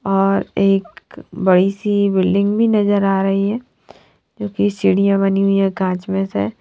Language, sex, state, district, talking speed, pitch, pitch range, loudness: Hindi, female, Punjab, Fazilka, 145 wpm, 195 Hz, 185-200 Hz, -17 LUFS